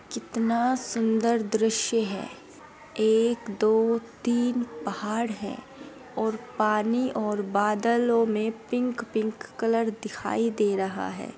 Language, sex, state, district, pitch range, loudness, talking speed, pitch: Hindi, female, Uttar Pradesh, Etah, 215-240 Hz, -26 LUFS, 110 wpm, 230 Hz